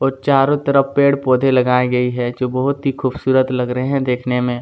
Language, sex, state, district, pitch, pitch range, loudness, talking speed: Hindi, male, Chhattisgarh, Kabirdham, 130 Hz, 125-140 Hz, -16 LUFS, 220 wpm